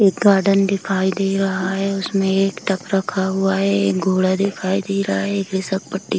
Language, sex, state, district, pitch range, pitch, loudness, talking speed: Hindi, female, Bihar, Kishanganj, 190-195 Hz, 195 Hz, -19 LUFS, 215 wpm